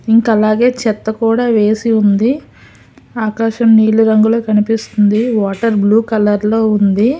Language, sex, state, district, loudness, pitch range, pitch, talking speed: Telugu, female, Telangana, Hyderabad, -12 LUFS, 215-225 Hz, 220 Hz, 125 wpm